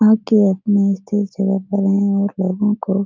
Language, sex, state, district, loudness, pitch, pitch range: Hindi, female, Bihar, Jahanabad, -17 LUFS, 200 Hz, 195-205 Hz